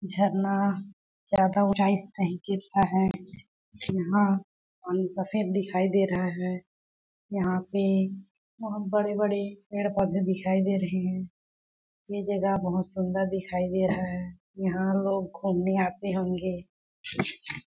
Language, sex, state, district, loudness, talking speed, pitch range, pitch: Hindi, female, Chhattisgarh, Balrampur, -28 LUFS, 120 wpm, 185-200 Hz, 190 Hz